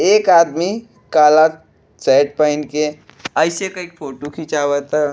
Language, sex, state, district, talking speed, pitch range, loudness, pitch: Bhojpuri, male, Uttar Pradesh, Deoria, 130 wpm, 150-170 Hz, -16 LUFS, 150 Hz